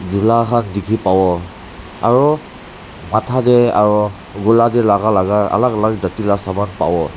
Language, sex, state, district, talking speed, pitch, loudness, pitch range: Nagamese, male, Nagaland, Dimapur, 150 wpm, 105 Hz, -15 LUFS, 100-115 Hz